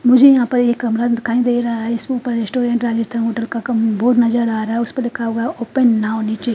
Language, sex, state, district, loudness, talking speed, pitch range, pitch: Hindi, female, Haryana, Charkhi Dadri, -17 LUFS, 255 wpm, 230-245 Hz, 235 Hz